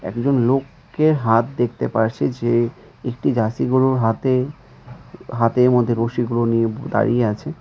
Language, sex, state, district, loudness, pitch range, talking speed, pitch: Bengali, male, West Bengal, Cooch Behar, -19 LUFS, 115-135 Hz, 125 wpm, 120 Hz